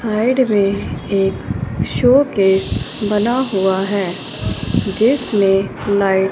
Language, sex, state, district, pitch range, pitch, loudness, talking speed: Hindi, female, Punjab, Fazilka, 190-220 Hz, 195 Hz, -17 LUFS, 95 wpm